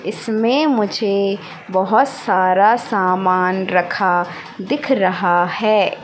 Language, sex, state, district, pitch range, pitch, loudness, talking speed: Hindi, female, Madhya Pradesh, Katni, 185-220 Hz, 195 Hz, -17 LUFS, 90 wpm